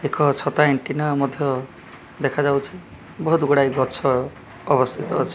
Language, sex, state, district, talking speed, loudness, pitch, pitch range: Odia, male, Odisha, Malkangiri, 110 wpm, -21 LUFS, 145 Hz, 135-150 Hz